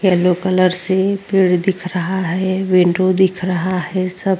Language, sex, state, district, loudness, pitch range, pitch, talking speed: Hindi, female, Uttar Pradesh, Jyotiba Phule Nagar, -16 LUFS, 180-190 Hz, 185 Hz, 175 wpm